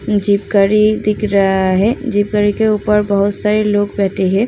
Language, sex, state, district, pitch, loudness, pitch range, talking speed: Hindi, female, Uttar Pradesh, Muzaffarnagar, 205 Hz, -14 LUFS, 200-210 Hz, 185 wpm